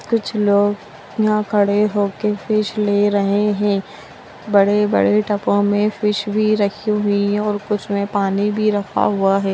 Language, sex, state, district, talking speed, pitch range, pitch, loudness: Hindi, female, Bihar, Sitamarhi, 155 wpm, 200-210 Hz, 205 Hz, -18 LUFS